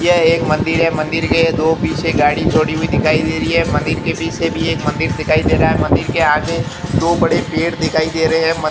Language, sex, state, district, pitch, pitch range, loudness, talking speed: Hindi, male, Rajasthan, Barmer, 160 Hz, 155-165 Hz, -15 LUFS, 250 wpm